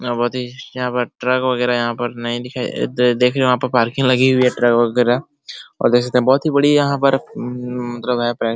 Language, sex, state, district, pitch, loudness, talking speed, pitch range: Hindi, male, Bihar, Araria, 125 Hz, -17 LUFS, 210 wpm, 120-130 Hz